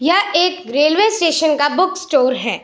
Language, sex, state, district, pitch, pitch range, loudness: Hindi, female, Bihar, Saharsa, 320 Hz, 290-370 Hz, -15 LUFS